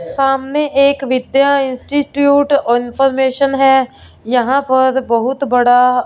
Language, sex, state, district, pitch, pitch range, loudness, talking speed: Hindi, female, Punjab, Fazilka, 265 Hz, 250-280 Hz, -13 LUFS, 100 wpm